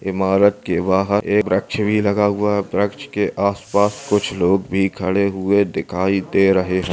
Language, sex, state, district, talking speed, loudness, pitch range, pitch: Hindi, male, Andhra Pradesh, Anantapur, 180 wpm, -18 LUFS, 95-105 Hz, 100 Hz